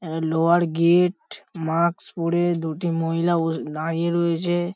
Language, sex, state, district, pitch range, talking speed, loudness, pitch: Bengali, male, West Bengal, Paschim Medinipur, 165-175 Hz, 125 wpm, -22 LUFS, 170 Hz